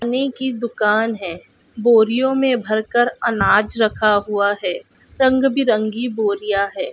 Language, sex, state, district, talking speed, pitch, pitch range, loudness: Hindi, female, Chhattisgarh, Balrampur, 140 wpm, 225 Hz, 210-250 Hz, -18 LUFS